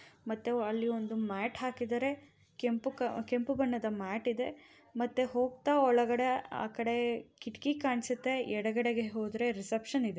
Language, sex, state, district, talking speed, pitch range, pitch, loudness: Kannada, female, Karnataka, Raichur, 125 wpm, 225-255 Hz, 240 Hz, -34 LUFS